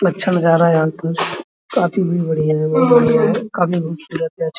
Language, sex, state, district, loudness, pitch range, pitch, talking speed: Hindi, male, Bihar, Araria, -16 LUFS, 160-190 Hz, 170 Hz, 145 wpm